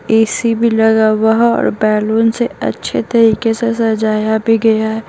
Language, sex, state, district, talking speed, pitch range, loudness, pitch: Hindi, female, Bihar, Patna, 175 wpm, 220-230 Hz, -13 LUFS, 225 Hz